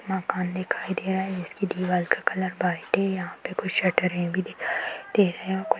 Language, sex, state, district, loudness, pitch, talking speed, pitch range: Hindi, female, Bihar, Saharsa, -26 LUFS, 185 Hz, 240 wpm, 180-190 Hz